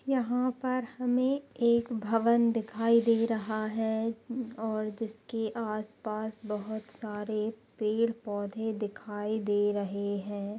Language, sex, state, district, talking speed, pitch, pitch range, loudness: Hindi, female, Goa, North and South Goa, 115 wpm, 220 Hz, 215-230 Hz, -31 LUFS